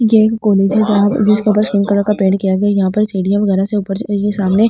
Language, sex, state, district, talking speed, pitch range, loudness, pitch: Hindi, female, Delhi, New Delhi, 255 wpm, 195-210 Hz, -14 LUFS, 205 Hz